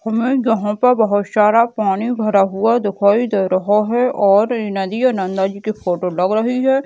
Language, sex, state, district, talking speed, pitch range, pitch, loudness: Hindi, male, Maharashtra, Chandrapur, 190 wpm, 195-235 Hz, 215 Hz, -16 LUFS